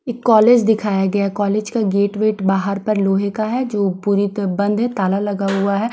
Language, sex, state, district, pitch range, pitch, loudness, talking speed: Hindi, female, Bihar, Kaimur, 200-215 Hz, 205 Hz, -17 LUFS, 220 wpm